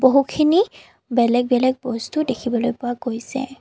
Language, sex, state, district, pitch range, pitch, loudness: Assamese, female, Assam, Kamrup Metropolitan, 245-275 Hz, 255 Hz, -20 LUFS